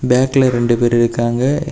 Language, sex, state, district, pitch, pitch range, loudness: Tamil, male, Tamil Nadu, Kanyakumari, 125 Hz, 120-130 Hz, -15 LUFS